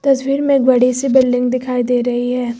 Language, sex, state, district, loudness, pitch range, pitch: Hindi, female, Uttar Pradesh, Lucknow, -15 LUFS, 245-270 Hz, 250 Hz